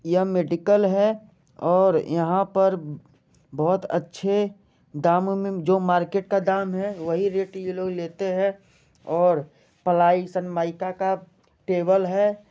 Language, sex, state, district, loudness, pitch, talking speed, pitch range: Hindi, male, Jharkhand, Jamtara, -23 LUFS, 185 Hz, 130 wpm, 170-195 Hz